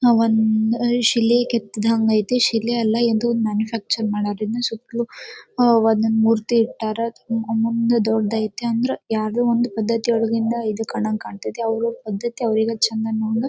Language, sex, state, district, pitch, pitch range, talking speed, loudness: Kannada, female, Karnataka, Dharwad, 225 Hz, 220-235 Hz, 135 wpm, -20 LUFS